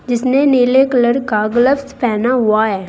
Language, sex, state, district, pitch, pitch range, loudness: Hindi, female, Uttar Pradesh, Saharanpur, 245 Hz, 220-265 Hz, -14 LUFS